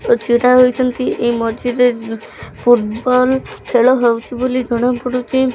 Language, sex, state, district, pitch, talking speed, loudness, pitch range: Odia, female, Odisha, Khordha, 245 Hz, 85 wpm, -15 LUFS, 235-255 Hz